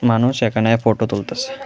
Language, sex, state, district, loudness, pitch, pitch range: Bengali, male, Tripura, West Tripura, -18 LUFS, 115 Hz, 110-130 Hz